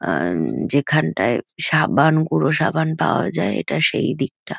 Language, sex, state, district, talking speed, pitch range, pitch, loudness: Bengali, female, West Bengal, Kolkata, 130 wpm, 155-160 Hz, 155 Hz, -19 LUFS